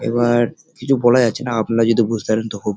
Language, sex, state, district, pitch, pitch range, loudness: Bengali, male, West Bengal, Dakshin Dinajpur, 115 Hz, 110-120 Hz, -17 LUFS